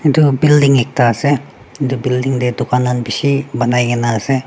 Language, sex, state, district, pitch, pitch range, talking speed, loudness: Nagamese, male, Nagaland, Dimapur, 130 Hz, 125-140 Hz, 190 wpm, -14 LUFS